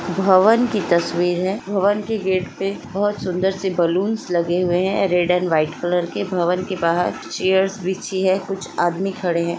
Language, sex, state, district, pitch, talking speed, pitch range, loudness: Hindi, female, Chhattisgarh, Sukma, 185 Hz, 180 wpm, 175-195 Hz, -20 LUFS